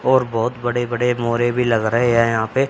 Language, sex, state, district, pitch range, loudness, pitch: Hindi, male, Haryana, Charkhi Dadri, 115-125 Hz, -18 LUFS, 120 Hz